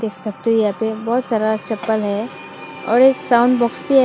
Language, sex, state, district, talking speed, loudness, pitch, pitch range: Hindi, female, Tripura, West Tripura, 205 wpm, -17 LUFS, 225 Hz, 215-240 Hz